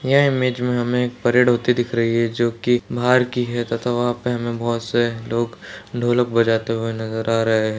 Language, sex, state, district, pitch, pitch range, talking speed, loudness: Hindi, male, Bihar, Darbhanga, 120 Hz, 115-125 Hz, 230 wpm, -20 LUFS